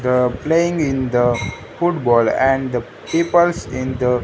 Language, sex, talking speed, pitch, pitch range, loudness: English, male, 155 wpm, 130 Hz, 120-160 Hz, -18 LUFS